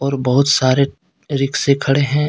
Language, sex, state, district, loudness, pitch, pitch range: Hindi, male, Jharkhand, Deoghar, -16 LUFS, 140 Hz, 135-140 Hz